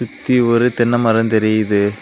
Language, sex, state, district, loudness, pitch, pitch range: Tamil, male, Tamil Nadu, Kanyakumari, -15 LUFS, 115 Hz, 110-120 Hz